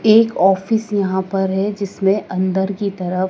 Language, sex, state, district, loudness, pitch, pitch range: Hindi, female, Madhya Pradesh, Dhar, -18 LUFS, 195 Hz, 190-205 Hz